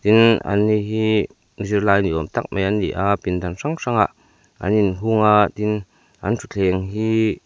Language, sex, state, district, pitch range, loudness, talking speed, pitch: Mizo, male, Mizoram, Aizawl, 95-110 Hz, -20 LUFS, 175 wpm, 105 Hz